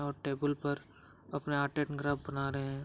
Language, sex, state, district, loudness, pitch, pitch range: Hindi, male, Jharkhand, Sahebganj, -36 LUFS, 145 Hz, 140-145 Hz